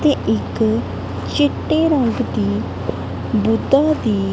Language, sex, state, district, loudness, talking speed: Punjabi, female, Punjab, Kapurthala, -18 LUFS, 95 wpm